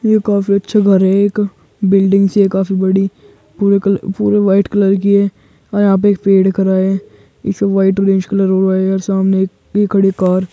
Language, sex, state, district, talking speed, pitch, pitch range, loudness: Hindi, male, Uttar Pradesh, Muzaffarnagar, 215 wpm, 195 Hz, 190-200 Hz, -13 LUFS